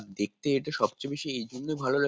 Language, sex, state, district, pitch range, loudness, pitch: Bengali, male, West Bengal, Kolkata, 115-140 Hz, -31 LUFS, 135 Hz